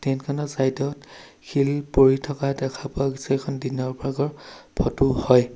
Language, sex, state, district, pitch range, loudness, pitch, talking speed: Assamese, male, Assam, Sonitpur, 130-140 Hz, -24 LUFS, 135 Hz, 160 wpm